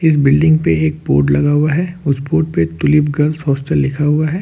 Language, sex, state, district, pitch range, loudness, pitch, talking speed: Hindi, male, Jharkhand, Ranchi, 135-155 Hz, -14 LUFS, 150 Hz, 230 wpm